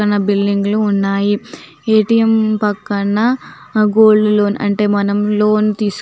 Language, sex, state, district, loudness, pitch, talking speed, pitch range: Telugu, female, Telangana, Nalgonda, -14 LUFS, 210 Hz, 130 wpm, 205-215 Hz